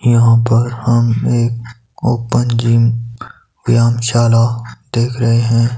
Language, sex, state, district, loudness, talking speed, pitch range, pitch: Hindi, male, Himachal Pradesh, Shimla, -14 LUFS, 105 wpm, 115-120 Hz, 115 Hz